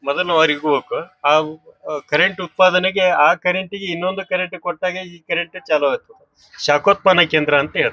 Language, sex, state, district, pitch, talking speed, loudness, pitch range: Kannada, male, Karnataka, Bijapur, 180 Hz, 135 wpm, -17 LUFS, 155-185 Hz